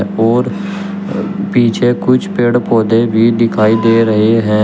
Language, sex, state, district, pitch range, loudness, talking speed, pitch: Hindi, male, Uttar Pradesh, Shamli, 110-120 Hz, -12 LUFS, 130 wpm, 115 Hz